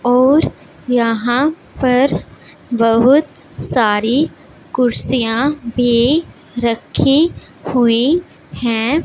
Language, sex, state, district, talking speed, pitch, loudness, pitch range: Hindi, female, Punjab, Pathankot, 65 wpm, 245 Hz, -15 LUFS, 235-280 Hz